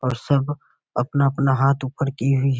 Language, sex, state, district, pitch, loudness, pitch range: Hindi, male, Bihar, Muzaffarpur, 135 Hz, -21 LUFS, 130-140 Hz